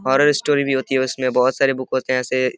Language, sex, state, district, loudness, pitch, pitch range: Hindi, male, Uttar Pradesh, Deoria, -19 LUFS, 130 Hz, 130-135 Hz